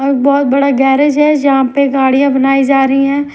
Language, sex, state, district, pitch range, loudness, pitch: Hindi, female, Punjab, Kapurthala, 270-280 Hz, -11 LUFS, 275 Hz